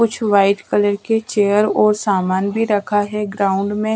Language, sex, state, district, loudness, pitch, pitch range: Hindi, female, Chhattisgarh, Raipur, -17 LUFS, 205 Hz, 200-215 Hz